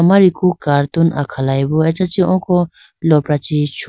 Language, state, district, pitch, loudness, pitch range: Idu Mishmi, Arunachal Pradesh, Lower Dibang Valley, 165 Hz, -15 LUFS, 145-180 Hz